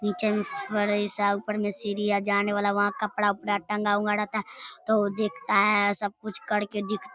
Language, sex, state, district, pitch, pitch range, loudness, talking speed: Hindi, female, Bihar, Darbhanga, 205 Hz, 205-210 Hz, -26 LUFS, 200 wpm